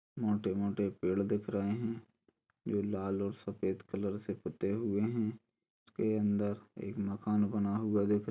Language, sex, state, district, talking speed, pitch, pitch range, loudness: Hindi, male, Chhattisgarh, Kabirdham, 150 wpm, 105 Hz, 100-110 Hz, -35 LUFS